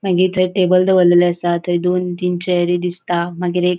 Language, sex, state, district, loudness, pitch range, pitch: Konkani, female, Goa, North and South Goa, -16 LUFS, 175-185 Hz, 180 Hz